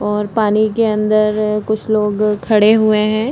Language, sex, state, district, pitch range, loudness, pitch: Hindi, female, Chhattisgarh, Balrampur, 210-215 Hz, -14 LUFS, 215 Hz